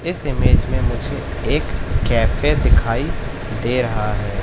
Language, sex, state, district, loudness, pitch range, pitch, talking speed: Hindi, male, Madhya Pradesh, Katni, -19 LUFS, 95-120 Hz, 105 Hz, 135 wpm